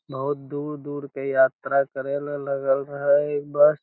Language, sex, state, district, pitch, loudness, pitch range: Hindi, male, Bihar, Lakhisarai, 140 Hz, -24 LUFS, 135-145 Hz